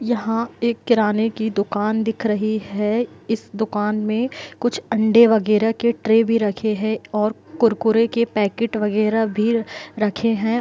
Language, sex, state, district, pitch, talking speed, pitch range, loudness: Hindi, female, Bihar, Gopalganj, 220 Hz, 155 wpm, 215-230 Hz, -20 LUFS